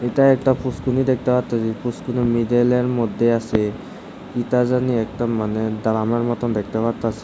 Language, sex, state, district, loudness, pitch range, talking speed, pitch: Bengali, male, Tripura, West Tripura, -20 LUFS, 110-125 Hz, 150 wpm, 120 Hz